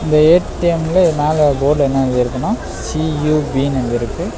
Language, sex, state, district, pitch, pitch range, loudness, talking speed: Tamil, male, Tamil Nadu, Nilgiris, 150 Hz, 135-155 Hz, -15 LUFS, 125 wpm